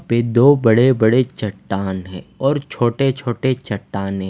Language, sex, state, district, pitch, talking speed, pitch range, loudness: Hindi, male, Himachal Pradesh, Shimla, 120 Hz, 140 wpm, 100-130 Hz, -17 LUFS